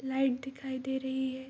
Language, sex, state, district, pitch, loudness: Hindi, female, Bihar, Saharsa, 265 Hz, -34 LUFS